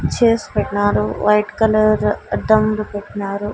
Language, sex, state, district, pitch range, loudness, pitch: Telugu, female, Andhra Pradesh, Annamaya, 205-215 Hz, -17 LUFS, 210 Hz